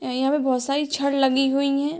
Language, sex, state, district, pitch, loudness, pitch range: Hindi, female, Bihar, Gopalganj, 275 Hz, -22 LUFS, 265-280 Hz